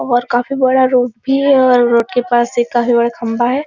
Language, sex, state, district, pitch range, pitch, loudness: Hindi, female, Bihar, Araria, 240-260 Hz, 245 Hz, -13 LUFS